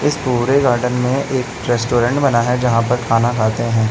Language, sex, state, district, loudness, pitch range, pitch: Hindi, male, Uttar Pradesh, Lalitpur, -16 LUFS, 120-130 Hz, 125 Hz